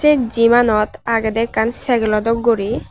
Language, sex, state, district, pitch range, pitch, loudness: Chakma, female, Tripura, Unakoti, 220-240 Hz, 230 Hz, -16 LUFS